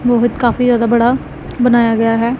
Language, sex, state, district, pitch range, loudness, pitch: Hindi, female, Punjab, Pathankot, 230-245 Hz, -13 LUFS, 240 Hz